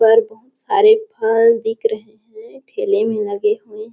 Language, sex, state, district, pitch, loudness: Hindi, female, Chhattisgarh, Balrampur, 275 Hz, -16 LUFS